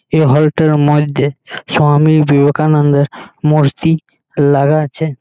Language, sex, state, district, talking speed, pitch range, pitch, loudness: Bengali, male, West Bengal, Malda, 105 wpm, 145-155 Hz, 150 Hz, -12 LUFS